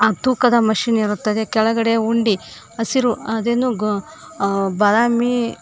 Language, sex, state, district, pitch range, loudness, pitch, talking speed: Kannada, female, Karnataka, Koppal, 215-235 Hz, -18 LUFS, 225 Hz, 130 wpm